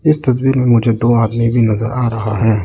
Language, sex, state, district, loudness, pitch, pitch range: Hindi, male, Arunachal Pradesh, Lower Dibang Valley, -14 LUFS, 115 Hz, 110-125 Hz